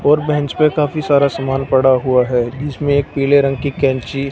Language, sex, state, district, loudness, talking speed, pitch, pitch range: Hindi, male, Punjab, Fazilka, -15 LUFS, 210 wpm, 140 Hz, 135-145 Hz